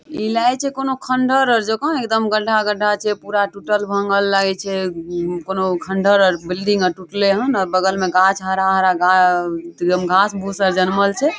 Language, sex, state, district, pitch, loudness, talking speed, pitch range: Maithili, female, Bihar, Madhepura, 195 Hz, -17 LUFS, 170 wpm, 185-215 Hz